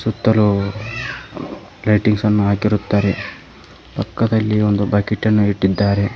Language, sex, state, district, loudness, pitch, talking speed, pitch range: Kannada, male, Karnataka, Koppal, -17 LUFS, 105 Hz, 80 wpm, 100-110 Hz